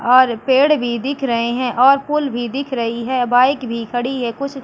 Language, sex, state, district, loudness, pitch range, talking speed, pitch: Hindi, female, Madhya Pradesh, Katni, -17 LUFS, 240-270 Hz, 235 wpm, 250 Hz